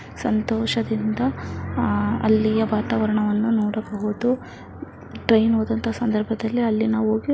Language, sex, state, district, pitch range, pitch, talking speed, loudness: Kannada, female, Karnataka, Dakshina Kannada, 215-225 Hz, 220 Hz, 80 wpm, -22 LUFS